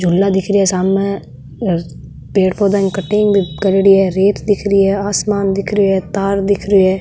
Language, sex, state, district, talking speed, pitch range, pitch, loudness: Marwari, female, Rajasthan, Nagaur, 205 wpm, 190-200 Hz, 195 Hz, -14 LUFS